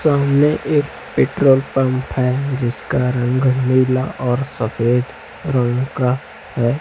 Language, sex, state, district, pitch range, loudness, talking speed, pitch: Hindi, male, Chhattisgarh, Raipur, 125-140 Hz, -18 LUFS, 115 wpm, 130 Hz